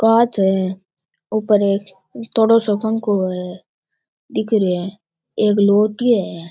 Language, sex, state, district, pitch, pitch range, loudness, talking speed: Rajasthani, male, Rajasthan, Churu, 205 Hz, 185-220 Hz, -18 LUFS, 120 wpm